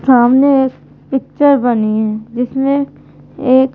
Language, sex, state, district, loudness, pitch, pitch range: Hindi, female, Madhya Pradesh, Bhopal, -13 LUFS, 260 Hz, 240-275 Hz